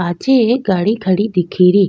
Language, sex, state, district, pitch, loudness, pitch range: Rajasthani, female, Rajasthan, Nagaur, 195 Hz, -14 LUFS, 180-225 Hz